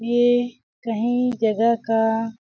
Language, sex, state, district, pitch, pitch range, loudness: Hindi, female, Chhattisgarh, Balrampur, 235 Hz, 225-245 Hz, -21 LUFS